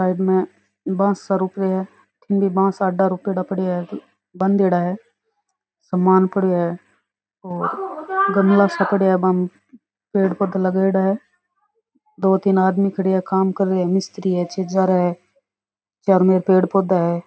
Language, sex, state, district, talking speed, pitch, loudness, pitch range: Rajasthani, female, Rajasthan, Nagaur, 155 wpm, 190 Hz, -19 LUFS, 185-200 Hz